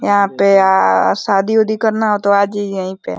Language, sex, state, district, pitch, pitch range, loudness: Hindi, male, Uttar Pradesh, Deoria, 200 Hz, 190-205 Hz, -14 LUFS